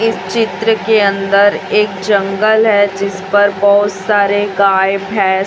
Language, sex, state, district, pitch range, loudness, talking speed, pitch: Hindi, female, Chhattisgarh, Raipur, 195-210 Hz, -12 LUFS, 140 wpm, 200 Hz